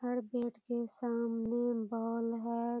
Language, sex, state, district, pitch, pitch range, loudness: Hindi, female, Bihar, Purnia, 235 Hz, 230-240 Hz, -36 LUFS